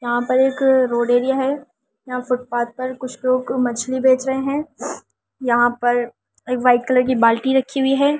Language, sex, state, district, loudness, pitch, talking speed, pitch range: Hindi, female, Delhi, New Delhi, -19 LUFS, 255 Hz, 185 wpm, 245-265 Hz